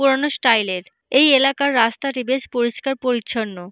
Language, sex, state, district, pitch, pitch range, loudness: Bengali, female, West Bengal, Paschim Medinipur, 255 Hz, 230-275 Hz, -18 LUFS